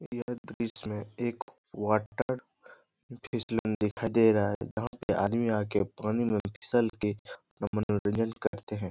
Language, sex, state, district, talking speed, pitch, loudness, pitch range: Hindi, male, Bihar, Jahanabad, 160 wpm, 110 Hz, -31 LUFS, 105-115 Hz